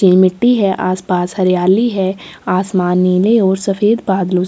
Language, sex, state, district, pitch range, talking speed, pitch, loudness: Hindi, female, Chhattisgarh, Sukma, 180-200 Hz, 175 wpm, 185 Hz, -14 LUFS